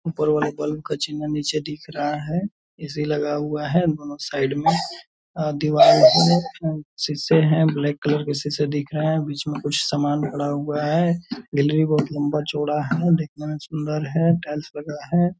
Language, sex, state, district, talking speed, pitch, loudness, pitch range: Hindi, male, Bihar, Purnia, 180 wpm, 150 Hz, -21 LUFS, 145-160 Hz